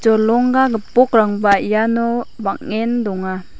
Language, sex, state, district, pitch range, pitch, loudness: Garo, female, Meghalaya, West Garo Hills, 205-240 Hz, 225 Hz, -16 LUFS